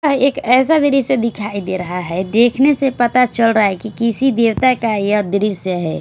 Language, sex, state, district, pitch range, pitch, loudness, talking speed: Hindi, female, Chhattisgarh, Raipur, 200-265 Hz, 230 Hz, -15 LUFS, 210 wpm